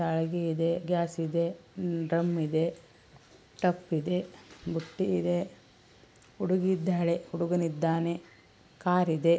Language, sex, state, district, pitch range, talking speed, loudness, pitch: Kannada, female, Karnataka, Belgaum, 165-180 Hz, 110 wpm, -30 LUFS, 170 Hz